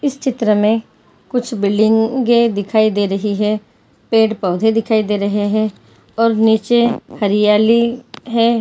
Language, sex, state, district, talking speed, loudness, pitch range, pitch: Hindi, female, Chhattisgarh, Bilaspur, 130 wpm, -15 LUFS, 210-235 Hz, 220 Hz